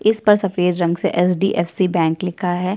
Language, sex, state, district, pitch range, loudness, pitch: Hindi, female, Chhattisgarh, Kabirdham, 175-195 Hz, -18 LUFS, 180 Hz